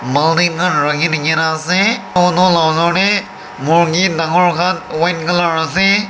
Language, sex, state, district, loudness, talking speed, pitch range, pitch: Nagamese, male, Nagaland, Dimapur, -14 LUFS, 175 wpm, 160-180 Hz, 170 Hz